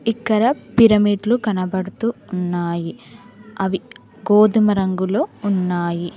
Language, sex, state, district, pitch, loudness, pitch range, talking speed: Telugu, female, Telangana, Mahabubabad, 205 Hz, -18 LUFS, 185-220 Hz, 80 wpm